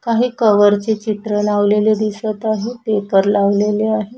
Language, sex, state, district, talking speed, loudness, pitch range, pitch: Marathi, female, Maharashtra, Washim, 130 wpm, -16 LUFS, 205-220 Hz, 215 Hz